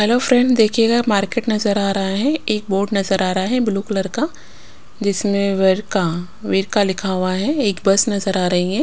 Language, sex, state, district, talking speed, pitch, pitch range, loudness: Hindi, female, Punjab, Pathankot, 195 wpm, 200 Hz, 195-220 Hz, -18 LUFS